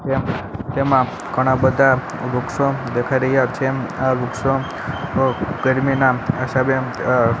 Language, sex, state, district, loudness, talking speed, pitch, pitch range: Gujarati, male, Gujarat, Gandhinagar, -19 LUFS, 90 wpm, 130 Hz, 125-135 Hz